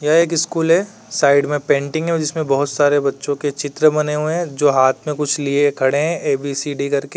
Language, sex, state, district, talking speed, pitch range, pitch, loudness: Hindi, male, Uttar Pradesh, Varanasi, 250 wpm, 140-155 Hz, 145 Hz, -17 LUFS